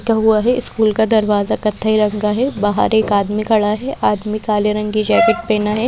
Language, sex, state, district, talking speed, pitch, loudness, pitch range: Hindi, female, Madhya Pradesh, Bhopal, 225 wpm, 215 Hz, -16 LUFS, 210-220 Hz